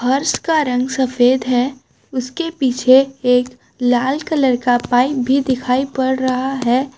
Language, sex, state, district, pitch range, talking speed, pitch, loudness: Hindi, female, Jharkhand, Garhwa, 250-270 Hz, 145 wpm, 260 Hz, -16 LUFS